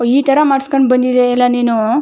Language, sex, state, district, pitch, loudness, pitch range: Kannada, female, Karnataka, Chamarajanagar, 255 Hz, -12 LUFS, 245-275 Hz